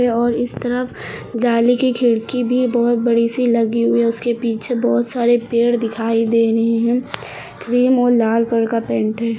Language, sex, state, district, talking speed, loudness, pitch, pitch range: Hindi, female, Uttar Pradesh, Lucknow, 185 wpm, -17 LUFS, 235 Hz, 230-245 Hz